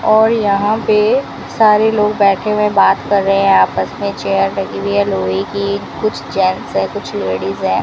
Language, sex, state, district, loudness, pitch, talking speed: Hindi, female, Rajasthan, Bikaner, -14 LUFS, 200 Hz, 190 wpm